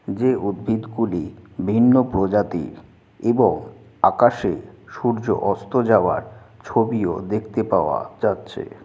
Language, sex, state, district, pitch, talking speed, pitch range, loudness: Bengali, male, West Bengal, Jalpaiguri, 110 Hz, 95 wpm, 95-115 Hz, -21 LUFS